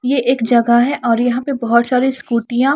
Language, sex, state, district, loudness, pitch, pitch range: Hindi, female, Haryana, Charkhi Dadri, -15 LUFS, 245 Hz, 235-265 Hz